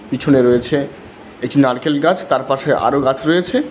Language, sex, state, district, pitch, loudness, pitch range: Bengali, male, West Bengal, Alipurduar, 140 Hz, -15 LUFS, 130-165 Hz